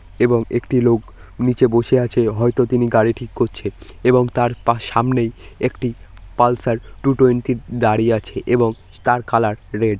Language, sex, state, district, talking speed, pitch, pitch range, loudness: Bengali, male, West Bengal, North 24 Parganas, 150 wpm, 120 Hz, 110-125 Hz, -18 LUFS